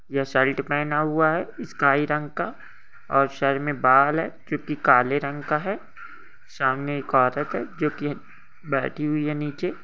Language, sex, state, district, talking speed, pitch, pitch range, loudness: Hindi, male, Bihar, Bhagalpur, 165 wpm, 145 Hz, 140-150 Hz, -23 LUFS